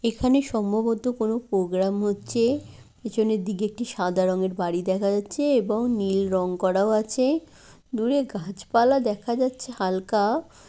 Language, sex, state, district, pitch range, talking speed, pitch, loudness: Bengali, female, West Bengal, Kolkata, 195-240 Hz, 130 wpm, 215 Hz, -24 LUFS